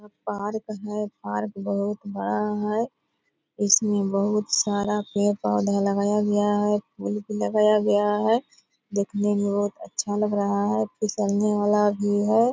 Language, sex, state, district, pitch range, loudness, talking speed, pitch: Hindi, female, Bihar, Purnia, 200-210 Hz, -24 LUFS, 145 wpm, 205 Hz